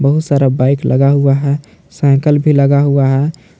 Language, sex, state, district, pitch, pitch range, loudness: Hindi, male, Jharkhand, Palamu, 140 Hz, 135-145 Hz, -12 LUFS